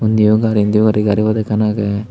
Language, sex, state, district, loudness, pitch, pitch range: Chakma, male, Tripura, Dhalai, -14 LUFS, 105 Hz, 105-110 Hz